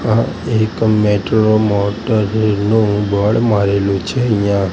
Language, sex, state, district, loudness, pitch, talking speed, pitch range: Gujarati, male, Gujarat, Gandhinagar, -15 LUFS, 105 Hz, 115 wpm, 100-110 Hz